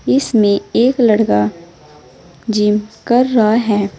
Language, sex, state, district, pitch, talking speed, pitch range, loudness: Hindi, female, Uttar Pradesh, Saharanpur, 215 Hz, 105 wpm, 200-235 Hz, -14 LUFS